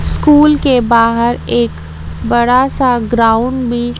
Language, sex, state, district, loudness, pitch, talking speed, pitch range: Hindi, female, Madhya Pradesh, Katni, -11 LUFS, 240 Hz, 120 wpm, 225-255 Hz